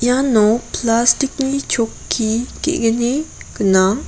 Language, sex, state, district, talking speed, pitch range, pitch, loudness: Garo, female, Meghalaya, West Garo Hills, 75 wpm, 225-265 Hz, 235 Hz, -17 LUFS